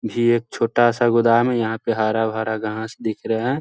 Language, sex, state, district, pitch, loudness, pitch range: Hindi, male, Bihar, Sitamarhi, 115 Hz, -20 LUFS, 110-120 Hz